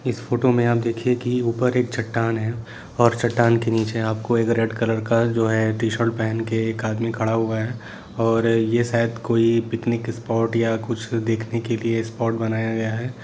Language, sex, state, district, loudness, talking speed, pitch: Hindi, male, Bihar, Saran, -22 LUFS, 195 wpm, 115 Hz